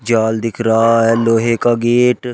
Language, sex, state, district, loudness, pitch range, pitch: Hindi, male, Uttar Pradesh, Shamli, -14 LUFS, 115-120 Hz, 115 Hz